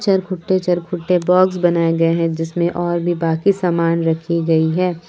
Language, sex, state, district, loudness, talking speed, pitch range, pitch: Hindi, female, Jharkhand, Palamu, -17 LUFS, 175 wpm, 165-180 Hz, 175 Hz